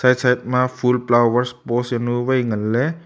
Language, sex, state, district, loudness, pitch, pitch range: Wancho, male, Arunachal Pradesh, Longding, -19 LUFS, 125 Hz, 120-125 Hz